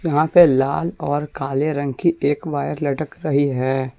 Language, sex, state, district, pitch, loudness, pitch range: Hindi, male, Jharkhand, Deoghar, 145 Hz, -19 LUFS, 135-155 Hz